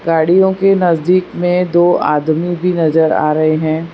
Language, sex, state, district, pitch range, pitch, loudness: Hindi, female, Gujarat, Valsad, 160-180 Hz, 170 Hz, -13 LUFS